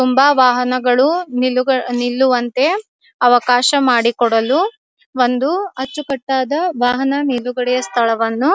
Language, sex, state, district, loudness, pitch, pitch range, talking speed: Kannada, female, Karnataka, Dharwad, -15 LUFS, 255 Hz, 245-285 Hz, 85 wpm